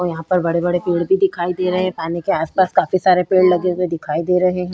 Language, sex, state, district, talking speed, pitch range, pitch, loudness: Hindi, female, Bihar, Vaishali, 280 wpm, 175-185 Hz, 180 Hz, -17 LUFS